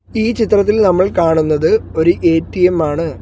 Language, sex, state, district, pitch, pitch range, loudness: Malayalam, male, Kerala, Kollam, 180 Hz, 165-215 Hz, -14 LUFS